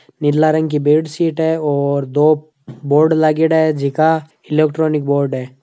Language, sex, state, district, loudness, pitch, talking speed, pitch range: Hindi, male, Rajasthan, Nagaur, -15 LUFS, 155 Hz, 140 wpm, 140-160 Hz